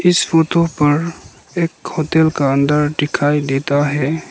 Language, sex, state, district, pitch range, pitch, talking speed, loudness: Hindi, male, Arunachal Pradesh, Lower Dibang Valley, 145-165 Hz, 155 Hz, 140 wpm, -16 LUFS